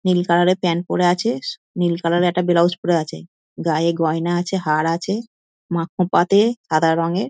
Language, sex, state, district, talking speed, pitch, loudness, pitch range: Bengali, female, West Bengal, Dakshin Dinajpur, 195 wpm, 175 Hz, -19 LUFS, 165-185 Hz